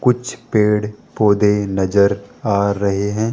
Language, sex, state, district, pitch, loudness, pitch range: Hindi, male, Rajasthan, Jaipur, 105 Hz, -17 LUFS, 100-105 Hz